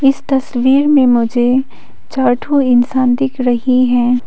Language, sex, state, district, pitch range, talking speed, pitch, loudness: Hindi, female, Arunachal Pradesh, Papum Pare, 245-270 Hz, 140 wpm, 255 Hz, -13 LUFS